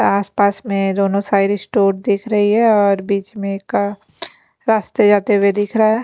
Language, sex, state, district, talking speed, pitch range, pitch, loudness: Hindi, female, Punjab, Pathankot, 180 wpm, 200-210 Hz, 200 Hz, -16 LUFS